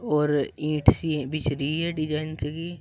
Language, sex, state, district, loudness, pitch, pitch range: Hindi, male, Uttar Pradesh, Shamli, -25 LUFS, 150 Hz, 145-155 Hz